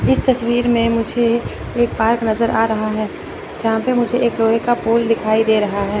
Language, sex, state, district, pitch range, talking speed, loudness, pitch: Hindi, female, Chandigarh, Chandigarh, 220-235 Hz, 210 wpm, -17 LUFS, 230 Hz